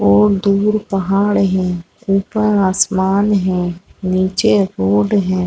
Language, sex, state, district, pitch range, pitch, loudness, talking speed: Hindi, female, Chhattisgarh, Raigarh, 185-200 Hz, 195 Hz, -15 LUFS, 110 wpm